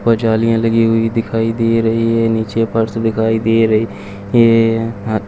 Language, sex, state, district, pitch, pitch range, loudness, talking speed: Kumaoni, male, Uttarakhand, Uttarkashi, 115 Hz, 110-115 Hz, -14 LUFS, 170 wpm